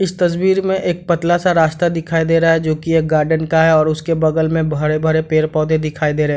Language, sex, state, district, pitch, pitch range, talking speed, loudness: Hindi, male, Bihar, Madhepura, 160 Hz, 155-170 Hz, 255 wpm, -16 LUFS